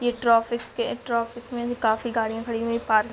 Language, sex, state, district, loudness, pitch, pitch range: Hindi, female, Chhattisgarh, Bilaspur, -25 LUFS, 235 Hz, 225-240 Hz